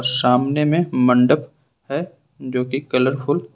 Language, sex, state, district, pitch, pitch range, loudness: Hindi, male, Jharkhand, Ranchi, 135 Hz, 125-145 Hz, -19 LUFS